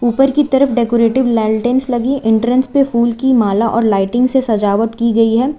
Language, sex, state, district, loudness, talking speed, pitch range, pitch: Hindi, female, Uttar Pradesh, Lucknow, -13 LUFS, 195 wpm, 225-260 Hz, 235 Hz